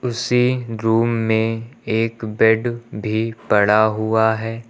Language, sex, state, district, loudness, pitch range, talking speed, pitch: Hindi, male, Uttar Pradesh, Lucknow, -19 LUFS, 110-115 Hz, 115 wpm, 115 Hz